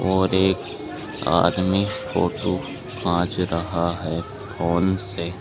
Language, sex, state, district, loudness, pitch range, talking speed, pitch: Hindi, male, Uttar Pradesh, Saharanpur, -23 LUFS, 85-100 Hz, 100 wpm, 90 Hz